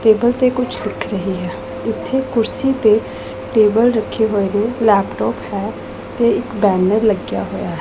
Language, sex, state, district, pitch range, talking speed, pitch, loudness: Punjabi, female, Punjab, Pathankot, 205-240 Hz, 160 wpm, 220 Hz, -17 LUFS